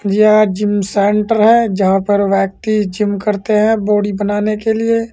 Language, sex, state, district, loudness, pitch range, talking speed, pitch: Hindi, male, Uttar Pradesh, Saharanpur, -14 LUFS, 200-215 Hz, 165 wpm, 210 Hz